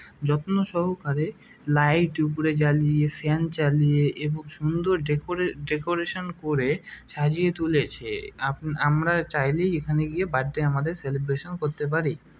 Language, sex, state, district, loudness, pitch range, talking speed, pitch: Bengali, male, West Bengal, Dakshin Dinajpur, -25 LUFS, 145-170 Hz, 115 wpm, 155 Hz